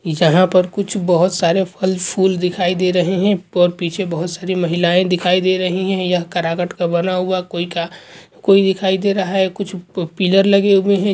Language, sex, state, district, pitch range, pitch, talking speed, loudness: Hindi, male, Bihar, Vaishali, 175-190 Hz, 185 Hz, 205 wpm, -16 LUFS